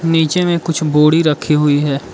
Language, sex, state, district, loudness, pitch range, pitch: Hindi, male, Arunachal Pradesh, Lower Dibang Valley, -14 LUFS, 150-165 Hz, 155 Hz